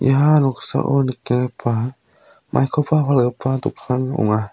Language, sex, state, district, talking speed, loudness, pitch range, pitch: Garo, male, Meghalaya, South Garo Hills, 90 wpm, -19 LUFS, 125-140 Hz, 130 Hz